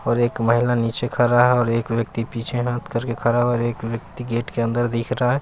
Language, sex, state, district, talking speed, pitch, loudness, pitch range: Hindi, male, Bihar, West Champaran, 255 wpm, 120 Hz, -21 LUFS, 115-120 Hz